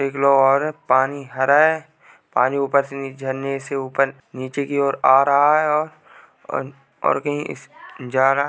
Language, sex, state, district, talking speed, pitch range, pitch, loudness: Hindi, male, Uttar Pradesh, Jalaun, 185 wpm, 135-145 Hz, 140 Hz, -19 LUFS